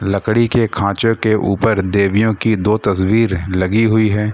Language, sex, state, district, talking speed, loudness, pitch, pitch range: Hindi, male, Bihar, Gaya, 165 wpm, -15 LUFS, 105 Hz, 100-110 Hz